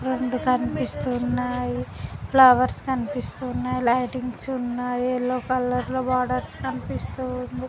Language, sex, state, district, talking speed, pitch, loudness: Telugu, female, Andhra Pradesh, Anantapur, 100 wpm, 240 Hz, -24 LUFS